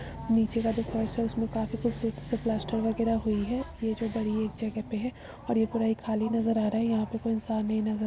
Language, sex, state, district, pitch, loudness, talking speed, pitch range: Hindi, female, Uttar Pradesh, Muzaffarnagar, 225 Hz, -30 LUFS, 255 wpm, 220-230 Hz